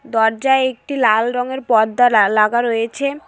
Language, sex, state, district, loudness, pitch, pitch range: Bengali, female, West Bengal, Cooch Behar, -16 LUFS, 245 Hz, 225-265 Hz